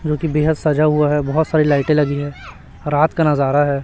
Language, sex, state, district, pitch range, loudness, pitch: Hindi, male, Chhattisgarh, Raipur, 145-155 Hz, -16 LUFS, 150 Hz